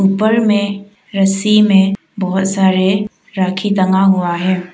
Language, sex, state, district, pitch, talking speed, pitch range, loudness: Hindi, female, Arunachal Pradesh, Papum Pare, 195 Hz, 125 wpm, 190-205 Hz, -14 LUFS